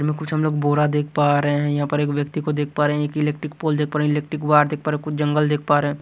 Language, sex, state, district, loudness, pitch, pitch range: Hindi, male, Haryana, Rohtak, -21 LUFS, 150 Hz, 145-150 Hz